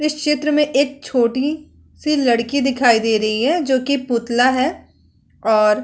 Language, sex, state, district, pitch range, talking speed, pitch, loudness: Hindi, female, Uttar Pradesh, Muzaffarnagar, 235-295 Hz, 165 wpm, 265 Hz, -17 LUFS